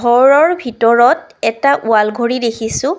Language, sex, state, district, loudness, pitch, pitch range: Assamese, female, Assam, Kamrup Metropolitan, -13 LUFS, 240 Hz, 230-280 Hz